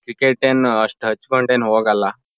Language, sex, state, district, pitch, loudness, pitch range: Kannada, male, Karnataka, Shimoga, 120 Hz, -17 LUFS, 110-130 Hz